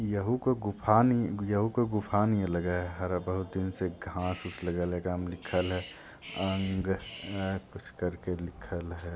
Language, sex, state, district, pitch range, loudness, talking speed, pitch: Hindi, male, Bihar, Jamui, 90-100 Hz, -31 LUFS, 170 wpm, 95 Hz